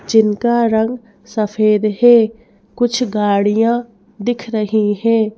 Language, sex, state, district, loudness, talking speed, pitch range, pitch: Hindi, female, Madhya Pradesh, Bhopal, -15 LUFS, 100 wpm, 210-235 Hz, 220 Hz